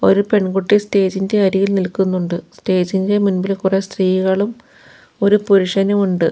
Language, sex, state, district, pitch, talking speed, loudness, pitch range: Malayalam, female, Kerala, Kollam, 195 Hz, 135 wpm, -16 LUFS, 185-200 Hz